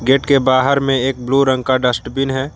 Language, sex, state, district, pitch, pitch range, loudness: Hindi, male, Jharkhand, Garhwa, 135 Hz, 130-135 Hz, -15 LUFS